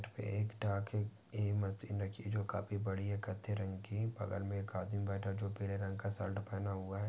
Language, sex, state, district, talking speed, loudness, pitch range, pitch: Hindi, male, Maharashtra, Pune, 205 wpm, -40 LUFS, 100-105 Hz, 100 Hz